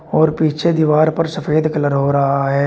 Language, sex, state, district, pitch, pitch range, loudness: Hindi, male, Uttar Pradesh, Shamli, 155 Hz, 140-155 Hz, -16 LUFS